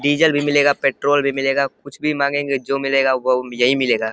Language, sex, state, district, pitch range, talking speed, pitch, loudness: Hindi, male, Uttar Pradesh, Deoria, 135-145 Hz, 205 wpm, 140 Hz, -18 LUFS